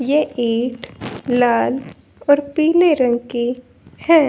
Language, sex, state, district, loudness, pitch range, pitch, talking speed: Hindi, female, Haryana, Jhajjar, -18 LUFS, 240-300 Hz, 255 Hz, 110 wpm